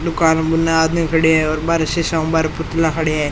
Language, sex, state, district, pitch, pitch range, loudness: Rajasthani, male, Rajasthan, Churu, 160 Hz, 160-165 Hz, -16 LUFS